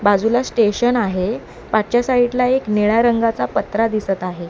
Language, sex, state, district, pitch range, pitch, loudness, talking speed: Marathi, female, Maharashtra, Mumbai Suburban, 205-245 Hz, 225 Hz, -17 LUFS, 145 wpm